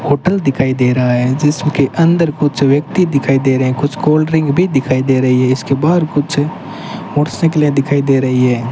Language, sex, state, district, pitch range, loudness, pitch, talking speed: Hindi, male, Rajasthan, Bikaner, 130-155 Hz, -13 LUFS, 140 Hz, 200 wpm